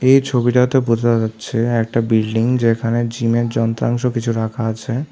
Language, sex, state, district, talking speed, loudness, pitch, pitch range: Bengali, male, Tripura, South Tripura, 140 wpm, -17 LUFS, 115 Hz, 115-125 Hz